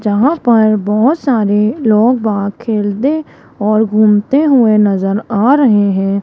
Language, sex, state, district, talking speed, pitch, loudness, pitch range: Hindi, female, Rajasthan, Jaipur, 135 wpm, 215 Hz, -12 LUFS, 205-245 Hz